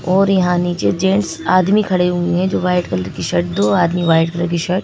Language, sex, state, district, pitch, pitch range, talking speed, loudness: Hindi, female, Madhya Pradesh, Bhopal, 180 Hz, 170-185 Hz, 250 wpm, -16 LUFS